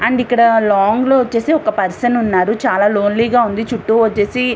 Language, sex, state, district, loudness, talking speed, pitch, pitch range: Telugu, female, Andhra Pradesh, Visakhapatnam, -14 LUFS, 200 wpm, 230 Hz, 210-245 Hz